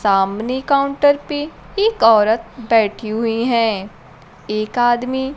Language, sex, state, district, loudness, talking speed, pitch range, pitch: Hindi, female, Bihar, Kaimur, -17 LUFS, 110 wpm, 215-265 Hz, 230 Hz